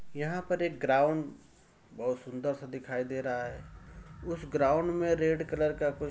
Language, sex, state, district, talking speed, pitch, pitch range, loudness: Hindi, male, Uttar Pradesh, Ghazipur, 185 wpm, 150 Hz, 130-165 Hz, -31 LUFS